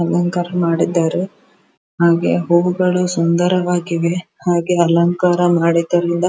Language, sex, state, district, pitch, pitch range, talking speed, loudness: Kannada, female, Karnataka, Dharwad, 175 Hz, 170-180 Hz, 75 wpm, -16 LUFS